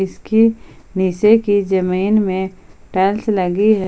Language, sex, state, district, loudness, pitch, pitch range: Hindi, female, Jharkhand, Palamu, -16 LUFS, 195 Hz, 185-215 Hz